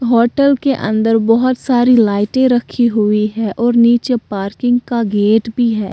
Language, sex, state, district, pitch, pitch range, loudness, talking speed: Hindi, female, Bihar, Katihar, 235 Hz, 215-245 Hz, -14 LUFS, 160 wpm